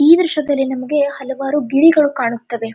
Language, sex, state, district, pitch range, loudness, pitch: Kannada, female, Karnataka, Dharwad, 260-300 Hz, -16 LUFS, 280 Hz